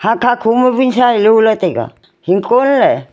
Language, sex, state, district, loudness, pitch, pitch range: Wancho, female, Arunachal Pradesh, Longding, -12 LUFS, 230 Hz, 210-250 Hz